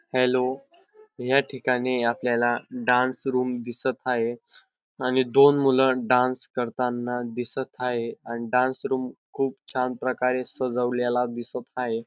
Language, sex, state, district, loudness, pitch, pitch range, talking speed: Marathi, male, Maharashtra, Dhule, -25 LUFS, 125 Hz, 125-130 Hz, 120 wpm